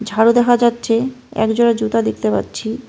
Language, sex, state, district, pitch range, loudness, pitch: Bengali, female, West Bengal, Cooch Behar, 220-240 Hz, -16 LUFS, 230 Hz